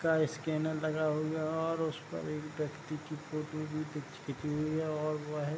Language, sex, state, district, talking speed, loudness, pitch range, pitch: Hindi, male, Bihar, Begusarai, 215 wpm, -36 LUFS, 150-155 Hz, 155 Hz